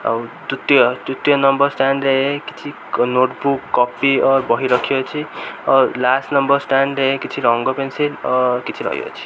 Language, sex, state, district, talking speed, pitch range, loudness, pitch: Odia, male, Odisha, Khordha, 155 wpm, 125-140 Hz, -17 LUFS, 135 Hz